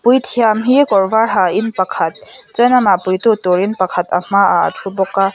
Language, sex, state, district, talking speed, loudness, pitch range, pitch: Mizo, female, Mizoram, Aizawl, 215 wpm, -14 LUFS, 185-230 Hz, 200 Hz